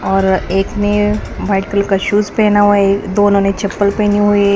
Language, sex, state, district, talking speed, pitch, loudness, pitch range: Hindi, male, Maharashtra, Mumbai Suburban, 210 wpm, 200 Hz, -13 LUFS, 195-205 Hz